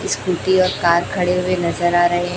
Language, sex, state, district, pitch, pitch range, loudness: Hindi, female, Chhattisgarh, Raipur, 175 Hz, 175-180 Hz, -17 LUFS